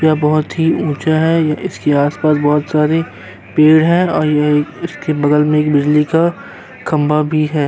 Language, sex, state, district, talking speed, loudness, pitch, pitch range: Hindi, male, Uttar Pradesh, Jyotiba Phule Nagar, 170 wpm, -14 LUFS, 150 Hz, 150-160 Hz